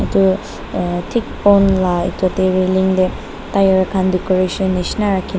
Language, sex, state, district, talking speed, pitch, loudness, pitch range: Nagamese, female, Nagaland, Dimapur, 155 wpm, 185 Hz, -16 LUFS, 185-195 Hz